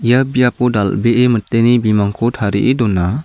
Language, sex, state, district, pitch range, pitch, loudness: Garo, male, Meghalaya, South Garo Hills, 105-125 Hz, 115 Hz, -14 LUFS